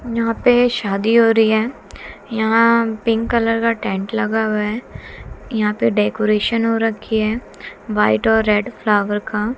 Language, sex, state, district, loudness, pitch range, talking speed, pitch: Hindi, female, Haryana, Jhajjar, -17 LUFS, 210-230 Hz, 155 wpm, 220 Hz